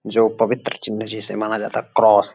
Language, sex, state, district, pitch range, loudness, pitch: Hindi, male, Uttar Pradesh, Gorakhpur, 110-115 Hz, -20 LUFS, 110 Hz